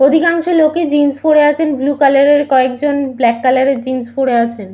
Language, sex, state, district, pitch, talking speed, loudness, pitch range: Bengali, female, West Bengal, Malda, 275 Hz, 190 wpm, -13 LUFS, 255-295 Hz